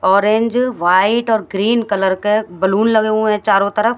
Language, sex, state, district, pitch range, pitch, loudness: Hindi, female, Haryana, Jhajjar, 195-225 Hz, 210 Hz, -15 LUFS